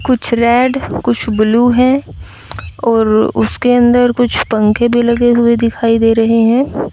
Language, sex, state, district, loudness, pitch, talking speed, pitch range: Hindi, female, Haryana, Rohtak, -12 LUFS, 235 Hz, 145 wpm, 225-245 Hz